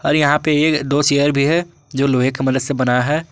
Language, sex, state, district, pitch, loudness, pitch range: Hindi, male, Jharkhand, Ranchi, 145 Hz, -16 LUFS, 135-150 Hz